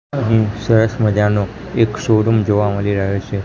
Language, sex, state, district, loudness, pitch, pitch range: Gujarati, male, Gujarat, Gandhinagar, -16 LUFS, 105 Hz, 100-110 Hz